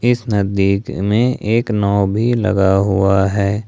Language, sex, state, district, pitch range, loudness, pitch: Hindi, male, Jharkhand, Ranchi, 100-110 Hz, -16 LUFS, 100 Hz